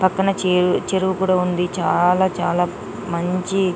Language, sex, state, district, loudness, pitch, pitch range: Telugu, female, Telangana, Nalgonda, -19 LUFS, 185 Hz, 180-190 Hz